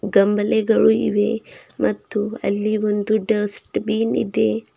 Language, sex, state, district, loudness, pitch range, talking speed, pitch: Kannada, female, Karnataka, Bidar, -20 LUFS, 205-220 Hz, 100 wpm, 210 Hz